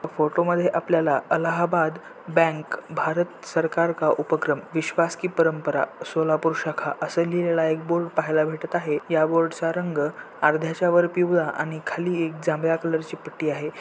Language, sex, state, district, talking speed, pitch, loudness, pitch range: Marathi, male, Maharashtra, Solapur, 150 wpm, 165 Hz, -24 LUFS, 155-170 Hz